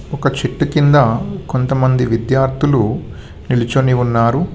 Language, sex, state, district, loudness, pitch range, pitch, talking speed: Telugu, male, Telangana, Hyderabad, -15 LUFS, 125-145 Hz, 130 Hz, 90 wpm